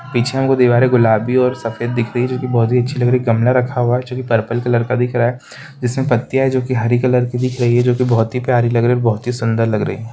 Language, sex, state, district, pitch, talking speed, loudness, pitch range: Hindi, male, Bihar, Muzaffarpur, 125 Hz, 320 wpm, -16 LUFS, 120-125 Hz